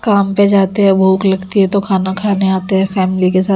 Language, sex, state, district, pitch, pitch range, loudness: Hindi, female, Delhi, New Delhi, 195 Hz, 190-200 Hz, -13 LUFS